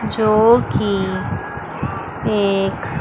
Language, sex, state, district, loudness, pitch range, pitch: Hindi, female, Chandigarh, Chandigarh, -18 LUFS, 190-215 Hz, 200 Hz